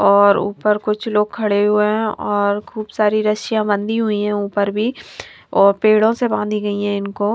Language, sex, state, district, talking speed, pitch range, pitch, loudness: Hindi, female, Himachal Pradesh, Shimla, 190 wpm, 205-215 Hz, 210 Hz, -17 LUFS